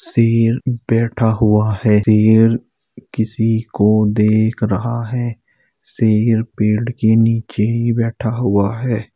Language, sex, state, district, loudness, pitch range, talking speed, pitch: Hindi, male, Bihar, Bhagalpur, -16 LUFS, 110-115 Hz, 120 wpm, 115 Hz